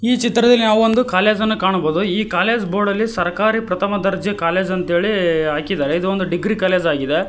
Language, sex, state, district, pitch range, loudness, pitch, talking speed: Kannada, male, Karnataka, Koppal, 180-220 Hz, -17 LUFS, 195 Hz, 180 wpm